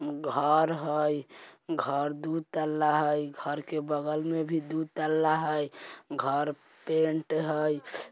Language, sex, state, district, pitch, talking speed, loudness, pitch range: Bajjika, male, Bihar, Vaishali, 150 Hz, 125 wpm, -30 LUFS, 145-155 Hz